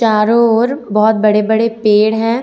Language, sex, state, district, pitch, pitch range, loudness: Hindi, female, Jharkhand, Ranchi, 220 Hz, 215-230 Hz, -12 LUFS